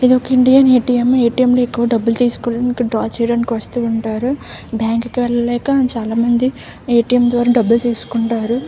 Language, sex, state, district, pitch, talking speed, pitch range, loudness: Telugu, female, Andhra Pradesh, Visakhapatnam, 240 Hz, 160 wpm, 230-250 Hz, -15 LUFS